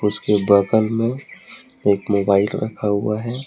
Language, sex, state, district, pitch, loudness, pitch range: Hindi, male, Jharkhand, Deoghar, 105 Hz, -19 LUFS, 100-110 Hz